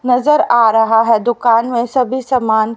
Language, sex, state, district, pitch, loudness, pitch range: Hindi, female, Haryana, Rohtak, 240 Hz, -13 LUFS, 225-250 Hz